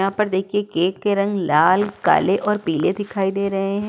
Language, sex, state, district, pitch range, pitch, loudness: Hindi, female, Uttar Pradesh, Budaun, 190-205 Hz, 200 Hz, -19 LUFS